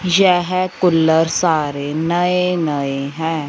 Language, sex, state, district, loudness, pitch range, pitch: Hindi, male, Punjab, Fazilka, -17 LUFS, 150-180 Hz, 165 Hz